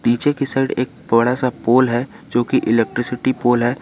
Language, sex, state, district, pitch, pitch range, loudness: Hindi, male, Jharkhand, Garhwa, 125 Hz, 120-130 Hz, -18 LUFS